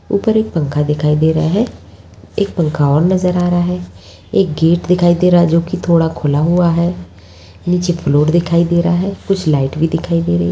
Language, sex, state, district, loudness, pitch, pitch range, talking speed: Hindi, female, Bihar, Bhagalpur, -14 LUFS, 170 Hz, 150-180 Hz, 215 wpm